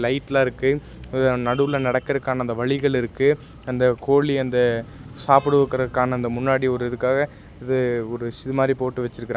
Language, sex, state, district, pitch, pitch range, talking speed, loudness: Tamil, male, Tamil Nadu, Nilgiris, 130 Hz, 120-135 Hz, 135 wpm, -22 LUFS